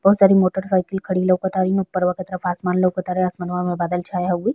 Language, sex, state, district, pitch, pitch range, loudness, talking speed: Bhojpuri, female, Bihar, East Champaran, 185 Hz, 180-190 Hz, -20 LUFS, 235 wpm